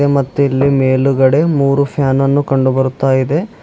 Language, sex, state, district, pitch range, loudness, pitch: Kannada, female, Karnataka, Bidar, 130-140 Hz, -13 LUFS, 135 Hz